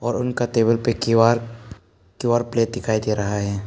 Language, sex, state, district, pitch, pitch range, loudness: Hindi, male, Arunachal Pradesh, Papum Pare, 115 Hz, 105-120 Hz, -21 LUFS